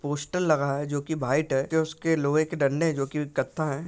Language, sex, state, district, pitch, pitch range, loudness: Hindi, male, Maharashtra, Pune, 150 Hz, 140-160 Hz, -26 LUFS